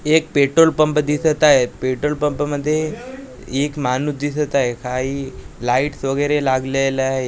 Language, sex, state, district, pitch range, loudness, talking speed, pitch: Marathi, male, Maharashtra, Gondia, 130-150 Hz, -18 LUFS, 150 wpm, 145 Hz